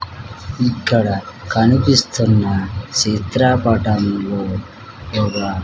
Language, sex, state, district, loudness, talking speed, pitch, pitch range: Telugu, male, Andhra Pradesh, Sri Satya Sai, -17 LUFS, 45 wpm, 105 Hz, 100-115 Hz